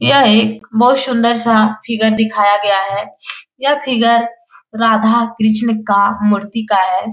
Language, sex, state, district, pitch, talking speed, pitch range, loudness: Hindi, female, Bihar, Jahanabad, 220 Hz, 135 wpm, 205-235 Hz, -13 LUFS